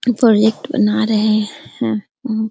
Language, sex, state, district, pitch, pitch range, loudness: Hindi, female, Bihar, Araria, 220 Hz, 215-235 Hz, -16 LUFS